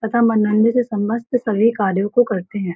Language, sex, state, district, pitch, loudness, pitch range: Hindi, female, Uttar Pradesh, Varanasi, 220 Hz, -18 LUFS, 205-235 Hz